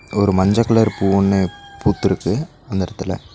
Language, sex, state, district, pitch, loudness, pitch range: Tamil, male, Tamil Nadu, Nilgiris, 100 Hz, -18 LUFS, 95-115 Hz